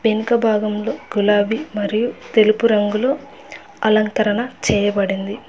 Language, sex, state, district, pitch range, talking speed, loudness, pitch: Telugu, female, Telangana, Hyderabad, 210-235 Hz, 85 wpm, -18 LUFS, 215 Hz